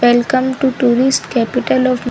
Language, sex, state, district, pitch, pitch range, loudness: Hindi, female, Chhattisgarh, Bilaspur, 255 Hz, 240-260 Hz, -14 LUFS